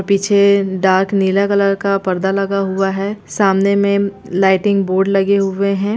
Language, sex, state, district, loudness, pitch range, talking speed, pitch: Hindi, female, Bihar, East Champaran, -15 LUFS, 195-200 Hz, 150 wpm, 195 Hz